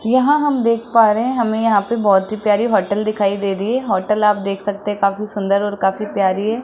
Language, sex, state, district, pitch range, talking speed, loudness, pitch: Hindi, male, Rajasthan, Jaipur, 200-230 Hz, 245 wpm, -17 LUFS, 210 Hz